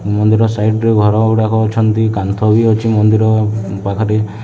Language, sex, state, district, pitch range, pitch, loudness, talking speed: Odia, male, Odisha, Khordha, 105-110 Hz, 110 Hz, -13 LUFS, 150 wpm